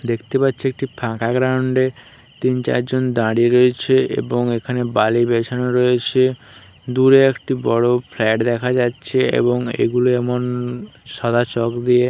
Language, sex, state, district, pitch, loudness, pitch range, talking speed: Bengali, male, West Bengal, Paschim Medinipur, 125 Hz, -18 LUFS, 120-130 Hz, 145 wpm